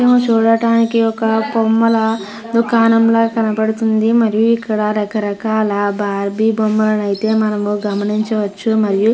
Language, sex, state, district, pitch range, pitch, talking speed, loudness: Telugu, female, Andhra Pradesh, Krishna, 210-225 Hz, 220 Hz, 105 wpm, -15 LUFS